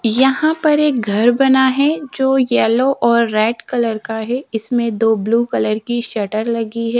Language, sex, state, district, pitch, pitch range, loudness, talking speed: Hindi, female, Odisha, Sambalpur, 235 Hz, 225-265 Hz, -16 LUFS, 180 wpm